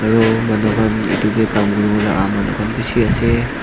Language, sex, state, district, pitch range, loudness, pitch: Nagamese, male, Nagaland, Dimapur, 105-115 Hz, -16 LUFS, 110 Hz